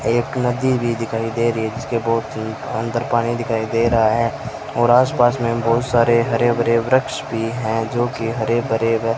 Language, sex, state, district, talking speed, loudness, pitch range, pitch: Hindi, male, Rajasthan, Bikaner, 205 wpm, -19 LUFS, 115-120 Hz, 115 Hz